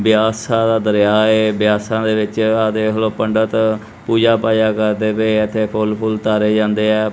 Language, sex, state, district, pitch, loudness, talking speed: Punjabi, male, Punjab, Kapurthala, 110 Hz, -16 LUFS, 175 wpm